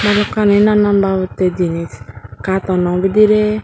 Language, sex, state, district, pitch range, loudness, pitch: Chakma, female, Tripura, Dhalai, 180-210 Hz, -14 LUFS, 190 Hz